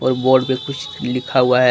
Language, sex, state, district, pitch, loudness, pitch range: Hindi, male, Jharkhand, Deoghar, 130 Hz, -18 LUFS, 125-130 Hz